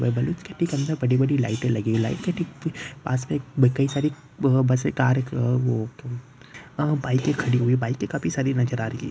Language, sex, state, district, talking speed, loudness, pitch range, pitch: Hindi, male, Bihar, Gopalganj, 180 wpm, -24 LUFS, 125-145 Hz, 130 Hz